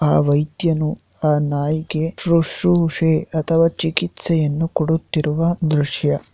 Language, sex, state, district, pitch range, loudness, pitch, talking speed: Kannada, male, Karnataka, Shimoga, 150-165 Hz, -19 LUFS, 160 Hz, 85 wpm